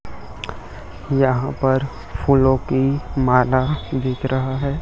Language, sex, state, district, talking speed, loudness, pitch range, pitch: Hindi, male, Chhattisgarh, Raipur, 100 wpm, -19 LUFS, 130-135 Hz, 130 Hz